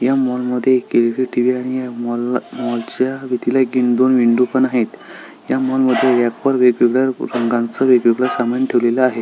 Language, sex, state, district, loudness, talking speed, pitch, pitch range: Marathi, male, Maharashtra, Solapur, -16 LUFS, 165 wpm, 125 Hz, 120-130 Hz